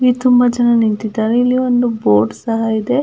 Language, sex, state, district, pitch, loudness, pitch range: Kannada, female, Karnataka, Belgaum, 240 Hz, -14 LUFS, 220-245 Hz